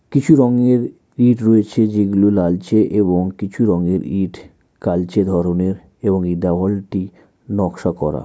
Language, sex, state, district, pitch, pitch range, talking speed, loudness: Bengali, male, West Bengal, Malda, 100 Hz, 90-110 Hz, 125 wpm, -17 LUFS